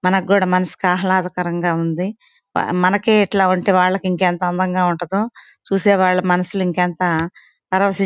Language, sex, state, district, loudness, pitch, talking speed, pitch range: Telugu, female, Andhra Pradesh, Guntur, -18 LUFS, 185 Hz, 125 wpm, 180-195 Hz